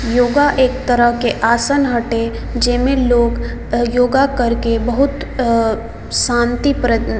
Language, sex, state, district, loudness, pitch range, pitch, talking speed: Maithili, female, Bihar, Samastipur, -15 LUFS, 235-260 Hz, 245 Hz, 135 wpm